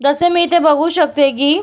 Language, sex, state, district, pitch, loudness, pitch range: Marathi, female, Maharashtra, Solapur, 310 Hz, -13 LUFS, 285-345 Hz